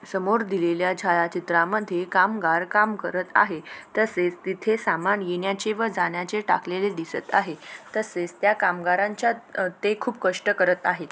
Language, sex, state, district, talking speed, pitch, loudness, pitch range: Marathi, female, Maharashtra, Aurangabad, 130 wpm, 190 Hz, -24 LUFS, 175-210 Hz